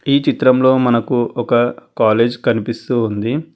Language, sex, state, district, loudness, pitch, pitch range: Telugu, male, Telangana, Hyderabad, -16 LUFS, 120 Hz, 115-130 Hz